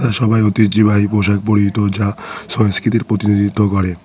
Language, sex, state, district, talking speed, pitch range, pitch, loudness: Bengali, male, West Bengal, Cooch Behar, 120 wpm, 100-110 Hz, 105 Hz, -15 LUFS